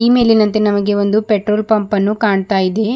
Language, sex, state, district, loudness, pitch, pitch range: Kannada, female, Karnataka, Bidar, -14 LUFS, 210 Hz, 205-220 Hz